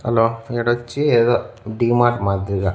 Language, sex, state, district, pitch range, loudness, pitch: Telugu, male, Andhra Pradesh, Annamaya, 110-120 Hz, -19 LUFS, 120 Hz